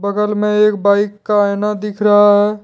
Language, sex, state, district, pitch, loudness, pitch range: Hindi, male, Jharkhand, Deoghar, 210 Hz, -14 LUFS, 205-210 Hz